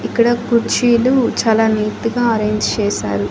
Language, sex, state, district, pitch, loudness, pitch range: Telugu, female, Andhra Pradesh, Annamaya, 230 Hz, -15 LUFS, 210-240 Hz